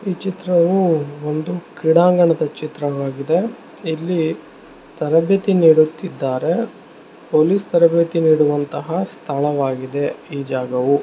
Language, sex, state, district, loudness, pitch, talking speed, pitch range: Kannada, male, Karnataka, Mysore, -18 LUFS, 160 Hz, 75 wpm, 145-175 Hz